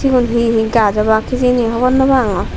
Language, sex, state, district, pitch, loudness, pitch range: Chakma, female, Tripura, Dhalai, 235 Hz, -14 LUFS, 220-255 Hz